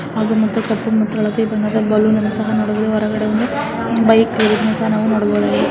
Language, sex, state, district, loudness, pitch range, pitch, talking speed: Kannada, female, Karnataka, Chamarajanagar, -16 LUFS, 215-220 Hz, 220 Hz, 125 wpm